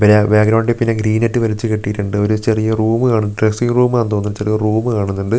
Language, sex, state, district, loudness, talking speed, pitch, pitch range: Malayalam, male, Kerala, Wayanad, -15 LUFS, 200 wpm, 110 Hz, 105-115 Hz